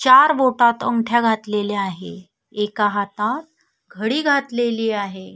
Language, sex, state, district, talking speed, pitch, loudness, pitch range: Marathi, female, Maharashtra, Sindhudurg, 110 wpm, 225 Hz, -19 LUFS, 210-255 Hz